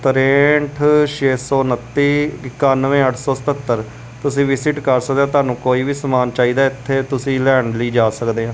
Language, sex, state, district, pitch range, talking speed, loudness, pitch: Punjabi, male, Punjab, Kapurthala, 125-140 Hz, 180 wpm, -16 LUFS, 135 Hz